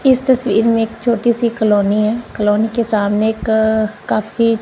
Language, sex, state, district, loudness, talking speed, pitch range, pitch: Hindi, female, Punjab, Kapurthala, -15 LUFS, 180 wpm, 215-235 Hz, 220 Hz